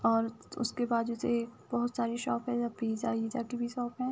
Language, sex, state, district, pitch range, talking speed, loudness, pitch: Hindi, female, Uttar Pradesh, Budaun, 230-240 Hz, 220 wpm, -33 LUFS, 235 Hz